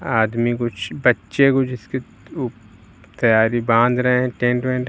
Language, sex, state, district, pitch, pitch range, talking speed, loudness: Hindi, male, Uttar Pradesh, Lucknow, 120 Hz, 110-125 Hz, 135 wpm, -19 LUFS